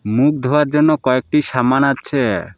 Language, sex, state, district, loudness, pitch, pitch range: Bengali, male, West Bengal, Alipurduar, -16 LUFS, 140 Hz, 130-150 Hz